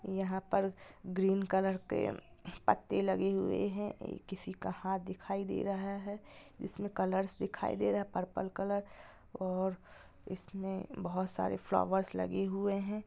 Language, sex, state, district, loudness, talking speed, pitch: Hindi, female, Bihar, Gopalganj, -36 LUFS, 145 wpm, 190 Hz